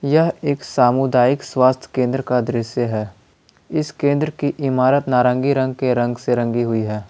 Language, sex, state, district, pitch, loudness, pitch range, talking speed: Hindi, male, Jharkhand, Palamu, 130 Hz, -18 LUFS, 120-140 Hz, 160 wpm